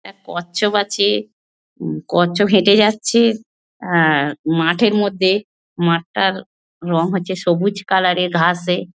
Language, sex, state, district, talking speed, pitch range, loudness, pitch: Bengali, female, West Bengal, North 24 Parganas, 105 wpm, 170-205 Hz, -17 LUFS, 180 Hz